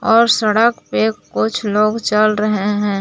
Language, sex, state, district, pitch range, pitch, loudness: Hindi, female, Jharkhand, Palamu, 205-225 Hz, 215 Hz, -15 LUFS